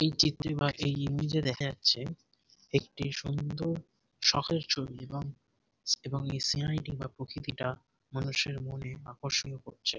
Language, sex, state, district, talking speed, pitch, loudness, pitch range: Bengali, male, West Bengal, Jhargram, 140 wpm, 140 Hz, -32 LUFS, 135-150 Hz